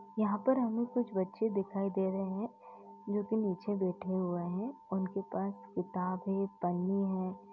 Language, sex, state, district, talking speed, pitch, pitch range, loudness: Hindi, female, Uttar Pradesh, Etah, 160 wpm, 190 Hz, 180-210 Hz, -35 LUFS